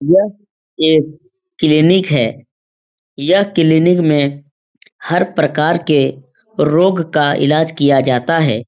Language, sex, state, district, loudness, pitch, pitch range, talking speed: Hindi, male, Uttar Pradesh, Etah, -14 LUFS, 155 Hz, 145-175 Hz, 110 wpm